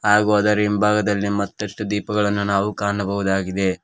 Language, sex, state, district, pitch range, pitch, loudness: Kannada, male, Karnataka, Koppal, 100-105 Hz, 105 Hz, -20 LUFS